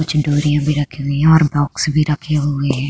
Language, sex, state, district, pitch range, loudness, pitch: Hindi, female, Uttar Pradesh, Hamirpur, 145-155 Hz, -16 LUFS, 150 Hz